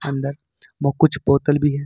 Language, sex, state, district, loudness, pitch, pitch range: Hindi, male, Jharkhand, Ranchi, -19 LUFS, 140 Hz, 140-145 Hz